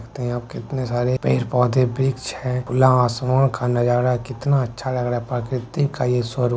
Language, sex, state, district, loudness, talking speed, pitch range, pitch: Maithili, male, Bihar, Begusarai, -21 LUFS, 210 wpm, 120-130 Hz, 125 Hz